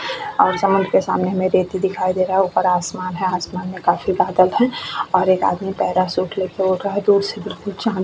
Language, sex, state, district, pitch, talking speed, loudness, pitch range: Hindi, female, Goa, North and South Goa, 185 Hz, 225 wpm, -19 LUFS, 185-200 Hz